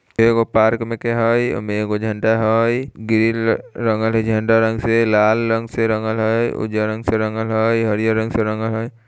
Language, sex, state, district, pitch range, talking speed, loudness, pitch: Hindi, male, Bihar, Muzaffarpur, 110-115 Hz, 200 wpm, -18 LUFS, 110 Hz